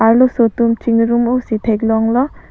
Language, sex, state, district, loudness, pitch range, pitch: Karbi, female, Assam, Karbi Anglong, -14 LUFS, 225-245 Hz, 230 Hz